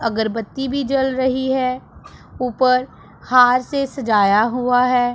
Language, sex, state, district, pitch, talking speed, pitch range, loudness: Hindi, female, Punjab, Pathankot, 255 Hz, 130 wpm, 245-265 Hz, -18 LUFS